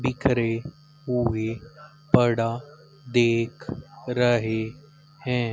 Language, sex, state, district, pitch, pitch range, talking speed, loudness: Hindi, male, Haryana, Rohtak, 125 Hz, 115-150 Hz, 65 wpm, -24 LUFS